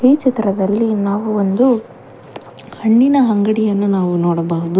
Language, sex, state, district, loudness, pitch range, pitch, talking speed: Kannada, female, Karnataka, Bangalore, -15 LUFS, 195-230 Hz, 210 Hz, 100 wpm